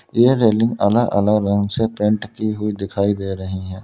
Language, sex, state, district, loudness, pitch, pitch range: Hindi, male, Uttar Pradesh, Lalitpur, -18 LUFS, 105 Hz, 100-110 Hz